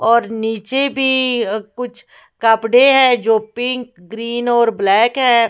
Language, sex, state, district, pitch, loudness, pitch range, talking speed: Hindi, female, Bihar, West Champaran, 235 Hz, -15 LUFS, 225-250 Hz, 130 wpm